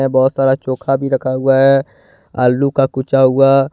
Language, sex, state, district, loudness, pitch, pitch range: Hindi, male, Jharkhand, Ranchi, -14 LUFS, 135 Hz, 130-135 Hz